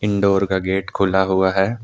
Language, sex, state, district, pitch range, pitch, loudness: Hindi, male, Jharkhand, Deoghar, 95-100 Hz, 95 Hz, -18 LUFS